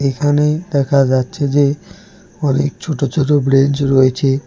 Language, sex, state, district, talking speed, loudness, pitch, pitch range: Bengali, male, West Bengal, Alipurduar, 120 wpm, -15 LUFS, 140 Hz, 135-145 Hz